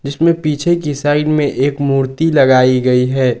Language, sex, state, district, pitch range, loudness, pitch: Hindi, male, Jharkhand, Garhwa, 130-150 Hz, -13 LUFS, 140 Hz